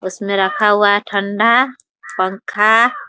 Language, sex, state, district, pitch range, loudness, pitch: Hindi, female, Bihar, Muzaffarpur, 195-230 Hz, -15 LUFS, 205 Hz